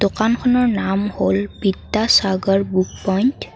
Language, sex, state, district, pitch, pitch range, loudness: Assamese, female, Assam, Kamrup Metropolitan, 195 Hz, 190-220 Hz, -18 LUFS